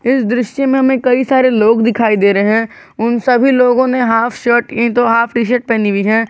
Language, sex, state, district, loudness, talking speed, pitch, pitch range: Hindi, male, Jharkhand, Garhwa, -12 LUFS, 240 wpm, 235 Hz, 225-255 Hz